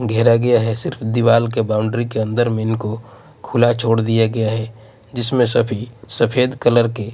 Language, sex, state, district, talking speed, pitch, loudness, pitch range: Hindi, male, Odisha, Nuapada, 175 wpm, 115 Hz, -17 LUFS, 110-120 Hz